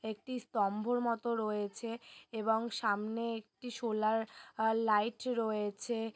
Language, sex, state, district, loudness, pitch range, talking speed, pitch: Bengali, female, West Bengal, Purulia, -35 LUFS, 215-235 Hz, 105 wpm, 225 Hz